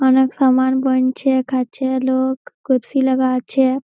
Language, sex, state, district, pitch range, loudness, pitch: Bengali, female, West Bengal, Malda, 260-265 Hz, -17 LUFS, 260 Hz